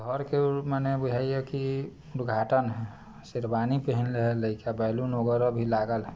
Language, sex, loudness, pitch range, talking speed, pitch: Bajjika, male, -29 LUFS, 115-135 Hz, 165 wpm, 125 Hz